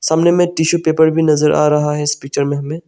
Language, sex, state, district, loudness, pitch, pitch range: Hindi, male, Arunachal Pradesh, Longding, -14 LUFS, 155 Hz, 150-160 Hz